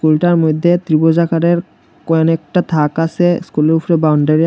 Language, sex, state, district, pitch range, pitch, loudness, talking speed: Bengali, male, Tripura, Unakoti, 155-170 Hz, 165 Hz, -14 LUFS, 160 wpm